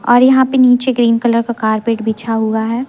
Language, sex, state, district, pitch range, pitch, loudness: Hindi, female, Madhya Pradesh, Umaria, 225-250 Hz, 235 Hz, -13 LUFS